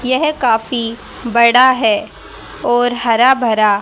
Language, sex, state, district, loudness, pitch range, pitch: Hindi, female, Haryana, Rohtak, -13 LUFS, 230-255 Hz, 240 Hz